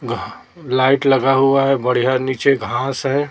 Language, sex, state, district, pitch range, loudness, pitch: Hindi, female, Chhattisgarh, Raipur, 130-135 Hz, -17 LUFS, 135 Hz